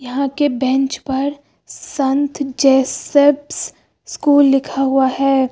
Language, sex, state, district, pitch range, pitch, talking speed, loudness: Hindi, female, Uttar Pradesh, Lucknow, 265-285 Hz, 275 Hz, 110 wpm, -16 LUFS